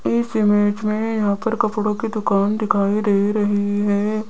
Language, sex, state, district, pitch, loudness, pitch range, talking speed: Hindi, female, Rajasthan, Jaipur, 210 Hz, -19 LUFS, 205-215 Hz, 165 wpm